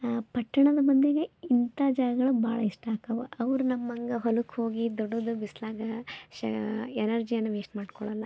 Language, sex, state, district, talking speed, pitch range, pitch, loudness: Kannada, female, Karnataka, Belgaum, 140 wpm, 220-250 Hz, 235 Hz, -29 LUFS